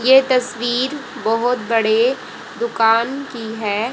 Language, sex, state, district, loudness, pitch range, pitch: Hindi, female, Haryana, Rohtak, -18 LUFS, 225-255 Hz, 235 Hz